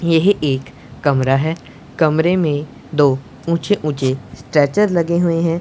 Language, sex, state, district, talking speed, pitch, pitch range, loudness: Hindi, male, Punjab, Pathankot, 140 wpm, 155 Hz, 135-170 Hz, -17 LUFS